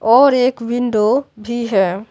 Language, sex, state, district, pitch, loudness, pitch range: Hindi, male, Bihar, Patna, 235 Hz, -16 LUFS, 215-250 Hz